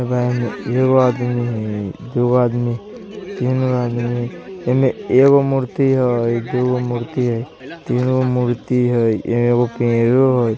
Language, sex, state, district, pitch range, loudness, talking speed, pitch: Bajjika, male, Bihar, Vaishali, 120-130 Hz, -17 LUFS, 120 wpm, 125 Hz